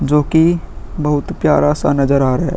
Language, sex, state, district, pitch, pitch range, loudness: Hindi, male, Uttar Pradesh, Muzaffarnagar, 145 Hz, 135-160 Hz, -15 LUFS